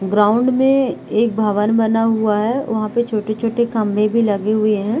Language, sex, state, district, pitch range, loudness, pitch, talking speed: Hindi, female, Chhattisgarh, Bilaspur, 210-230 Hz, -17 LUFS, 220 Hz, 180 wpm